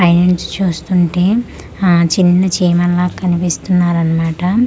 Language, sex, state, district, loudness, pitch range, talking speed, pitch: Telugu, female, Andhra Pradesh, Manyam, -14 LUFS, 175-185 Hz, 90 wpm, 175 Hz